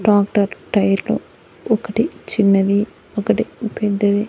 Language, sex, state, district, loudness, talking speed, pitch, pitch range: Telugu, female, Andhra Pradesh, Annamaya, -19 LUFS, 85 wpm, 205 Hz, 200-210 Hz